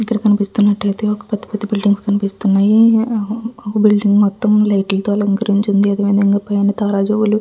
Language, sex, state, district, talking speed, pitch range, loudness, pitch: Telugu, female, Andhra Pradesh, Visakhapatnam, 155 wpm, 200-210 Hz, -15 LUFS, 205 Hz